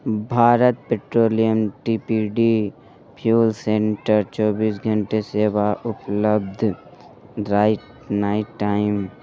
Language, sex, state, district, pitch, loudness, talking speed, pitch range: Hindi, male, Bihar, Supaul, 110 Hz, -20 LUFS, 85 wpm, 105-115 Hz